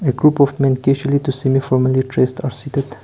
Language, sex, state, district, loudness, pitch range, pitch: English, male, Nagaland, Kohima, -16 LUFS, 130-140 Hz, 135 Hz